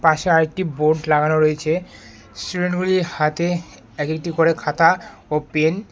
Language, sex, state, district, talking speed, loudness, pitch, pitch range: Bengali, male, West Bengal, Alipurduar, 140 wpm, -19 LUFS, 160 Hz, 150-175 Hz